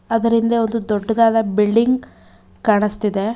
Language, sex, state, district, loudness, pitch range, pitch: Kannada, female, Karnataka, Bangalore, -17 LUFS, 210-230 Hz, 225 Hz